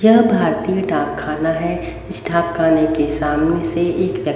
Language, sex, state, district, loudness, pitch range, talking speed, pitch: Hindi, female, Haryana, Rohtak, -18 LUFS, 160-185 Hz, 140 wpm, 170 Hz